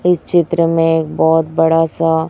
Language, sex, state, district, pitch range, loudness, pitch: Hindi, female, Chhattisgarh, Raipur, 160-170 Hz, -14 LUFS, 165 Hz